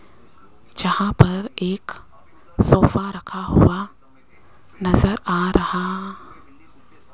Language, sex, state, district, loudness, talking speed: Hindi, female, Rajasthan, Jaipur, -19 LUFS, 85 wpm